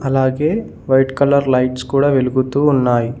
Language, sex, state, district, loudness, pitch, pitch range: Telugu, male, Telangana, Mahabubabad, -16 LUFS, 135 Hz, 130-140 Hz